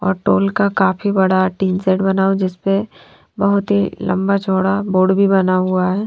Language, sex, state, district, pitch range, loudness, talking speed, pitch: Hindi, female, Punjab, Fazilka, 185-200 Hz, -16 LUFS, 205 wpm, 190 Hz